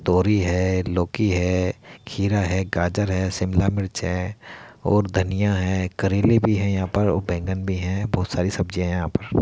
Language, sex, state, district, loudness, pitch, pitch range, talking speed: Hindi, male, Uttar Pradesh, Muzaffarnagar, -22 LUFS, 95 Hz, 90-100 Hz, 185 wpm